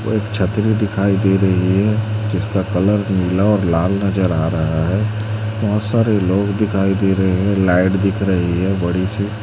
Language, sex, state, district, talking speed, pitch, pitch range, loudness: Hindi, male, Chhattisgarh, Raipur, 185 wpm, 100 Hz, 95-105 Hz, -17 LUFS